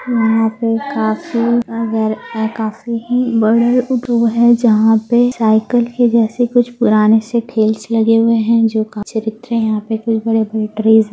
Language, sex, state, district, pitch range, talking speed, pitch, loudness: Hindi, female, Bihar, Gaya, 220-235 Hz, 140 wpm, 225 Hz, -14 LUFS